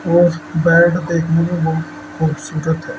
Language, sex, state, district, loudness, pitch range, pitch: Hindi, male, Uttar Pradesh, Saharanpur, -16 LUFS, 160-170 Hz, 165 Hz